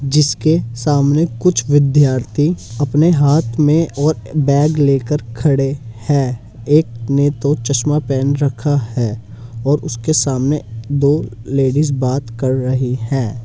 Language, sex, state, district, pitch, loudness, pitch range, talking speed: Hindi, male, Uttar Pradesh, Hamirpur, 140 Hz, -16 LUFS, 125-150 Hz, 125 wpm